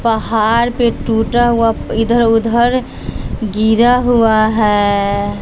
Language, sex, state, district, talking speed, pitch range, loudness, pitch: Hindi, female, Bihar, West Champaran, 100 wpm, 215-235 Hz, -13 LUFS, 225 Hz